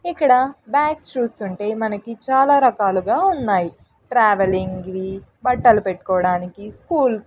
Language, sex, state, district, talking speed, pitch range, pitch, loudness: Telugu, female, Andhra Pradesh, Sri Satya Sai, 105 wpm, 190-265 Hz, 220 Hz, -19 LUFS